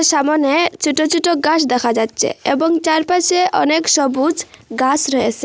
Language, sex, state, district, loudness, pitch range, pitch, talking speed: Bengali, female, Assam, Hailakandi, -15 LUFS, 270-330 Hz, 305 Hz, 130 wpm